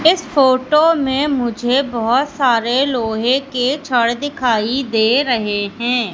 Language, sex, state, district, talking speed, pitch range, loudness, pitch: Hindi, female, Madhya Pradesh, Katni, 125 wpm, 235-275 Hz, -16 LUFS, 255 Hz